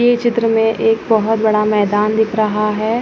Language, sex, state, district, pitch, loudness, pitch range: Hindi, female, Rajasthan, Nagaur, 220 Hz, -15 LUFS, 215-225 Hz